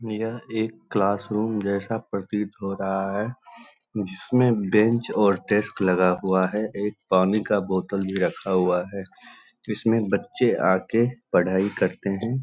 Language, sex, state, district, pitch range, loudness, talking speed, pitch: Hindi, male, Bihar, Begusarai, 95-110 Hz, -24 LUFS, 145 wpm, 100 Hz